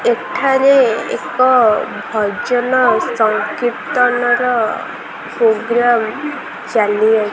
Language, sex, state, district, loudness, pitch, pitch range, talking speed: Odia, female, Odisha, Khordha, -15 LUFS, 240 Hz, 220-255 Hz, 55 wpm